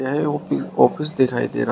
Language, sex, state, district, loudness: Hindi, male, Uttar Pradesh, Shamli, -20 LUFS